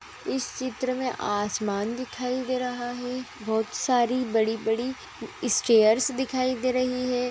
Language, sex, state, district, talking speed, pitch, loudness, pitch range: Magahi, female, Bihar, Gaya, 130 wpm, 250 Hz, -26 LUFS, 225-255 Hz